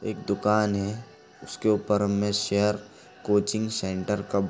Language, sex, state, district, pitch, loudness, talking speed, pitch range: Hindi, female, Chhattisgarh, Bastar, 105 Hz, -26 LUFS, 160 wpm, 100-105 Hz